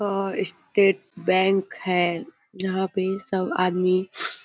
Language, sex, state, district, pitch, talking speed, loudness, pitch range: Hindi, female, Bihar, Kishanganj, 190 Hz, 110 wpm, -24 LUFS, 185-195 Hz